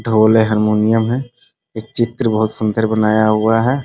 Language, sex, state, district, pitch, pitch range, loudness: Hindi, male, Bihar, Muzaffarpur, 110 Hz, 110-115 Hz, -15 LUFS